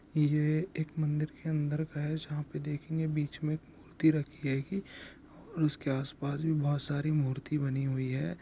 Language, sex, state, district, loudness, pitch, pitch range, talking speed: Hindi, male, Bihar, Saharsa, -33 LUFS, 150 Hz, 145-155 Hz, 190 wpm